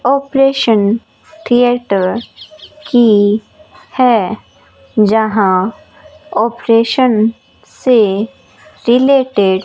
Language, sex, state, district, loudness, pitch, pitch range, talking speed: Hindi, female, Rajasthan, Bikaner, -12 LUFS, 230 Hz, 210-265 Hz, 55 wpm